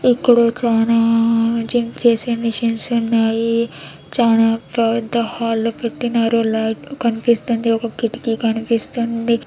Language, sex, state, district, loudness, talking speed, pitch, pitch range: Telugu, female, Andhra Pradesh, Anantapur, -17 LUFS, 95 wpm, 230 Hz, 230-235 Hz